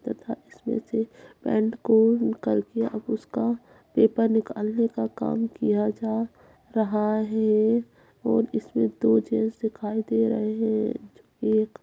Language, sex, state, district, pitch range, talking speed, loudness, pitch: Hindi, female, Chhattisgarh, Kabirdham, 215-230 Hz, 135 wpm, -25 LUFS, 220 Hz